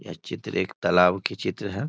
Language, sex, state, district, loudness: Hindi, male, Bihar, East Champaran, -24 LUFS